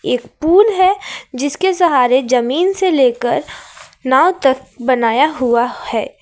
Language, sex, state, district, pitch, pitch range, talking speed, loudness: Hindi, female, Jharkhand, Ranchi, 270 Hz, 250-355 Hz, 125 wpm, -14 LUFS